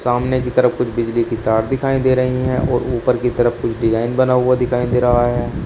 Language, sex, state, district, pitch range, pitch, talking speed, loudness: Hindi, male, Uttar Pradesh, Shamli, 120-125 Hz, 125 Hz, 245 wpm, -17 LUFS